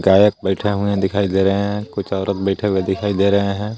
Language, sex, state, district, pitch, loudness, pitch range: Hindi, male, Jharkhand, Garhwa, 100 Hz, -18 LUFS, 95-100 Hz